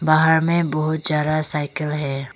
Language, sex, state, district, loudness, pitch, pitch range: Hindi, female, Arunachal Pradesh, Longding, -19 LUFS, 155 Hz, 150-160 Hz